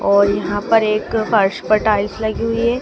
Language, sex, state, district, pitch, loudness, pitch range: Hindi, female, Madhya Pradesh, Dhar, 215 Hz, -17 LUFS, 200-225 Hz